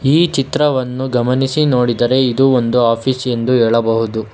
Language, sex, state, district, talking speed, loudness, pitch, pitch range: Kannada, male, Karnataka, Bangalore, 125 wpm, -14 LUFS, 125 Hz, 120-135 Hz